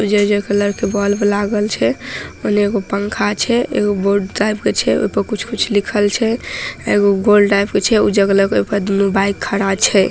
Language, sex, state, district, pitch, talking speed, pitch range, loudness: Maithili, female, Bihar, Samastipur, 205 Hz, 150 wpm, 200-210 Hz, -16 LUFS